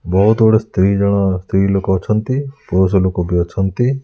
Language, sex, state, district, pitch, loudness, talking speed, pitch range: Odia, male, Odisha, Khordha, 95 Hz, -15 LUFS, 165 wpm, 95-110 Hz